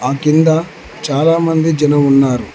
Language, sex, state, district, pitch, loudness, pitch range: Telugu, male, Telangana, Mahabubabad, 150 Hz, -13 LUFS, 140-160 Hz